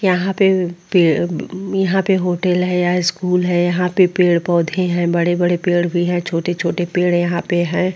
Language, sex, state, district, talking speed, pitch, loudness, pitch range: Hindi, female, Bihar, Vaishali, 190 wpm, 180 Hz, -17 LUFS, 175-185 Hz